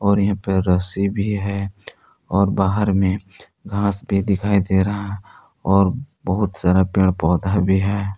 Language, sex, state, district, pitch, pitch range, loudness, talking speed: Hindi, male, Jharkhand, Palamu, 100 Hz, 95-100 Hz, -20 LUFS, 155 wpm